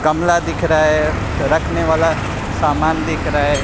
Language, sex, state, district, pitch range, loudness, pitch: Hindi, male, Maharashtra, Mumbai Suburban, 125-165 Hz, -16 LUFS, 155 Hz